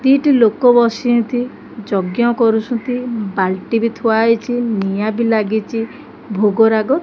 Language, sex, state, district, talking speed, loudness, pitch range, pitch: Odia, female, Odisha, Khordha, 120 wpm, -16 LUFS, 215-245 Hz, 230 Hz